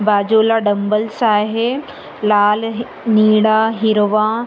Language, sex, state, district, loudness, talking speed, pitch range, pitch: Marathi, female, Maharashtra, Sindhudurg, -15 LUFS, 95 wpm, 210-225 Hz, 220 Hz